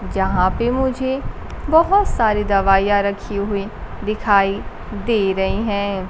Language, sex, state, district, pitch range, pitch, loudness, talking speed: Hindi, female, Bihar, Kaimur, 195-230 Hz, 205 Hz, -18 LUFS, 120 wpm